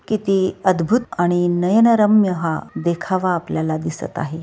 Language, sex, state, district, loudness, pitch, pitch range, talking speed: Marathi, female, Maharashtra, Dhule, -18 LUFS, 180 Hz, 170-200 Hz, 120 wpm